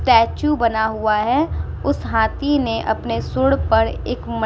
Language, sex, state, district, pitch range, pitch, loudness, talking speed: Hindi, female, Uttar Pradesh, Muzaffarnagar, 220-280 Hz, 225 Hz, -19 LUFS, 175 wpm